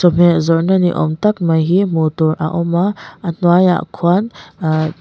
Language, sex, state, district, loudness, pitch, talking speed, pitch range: Mizo, female, Mizoram, Aizawl, -15 LUFS, 170 Hz, 190 wpm, 160-180 Hz